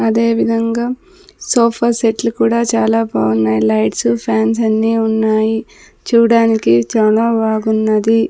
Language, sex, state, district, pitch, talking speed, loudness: Telugu, female, Andhra Pradesh, Sri Satya Sai, 220 Hz, 85 wpm, -14 LUFS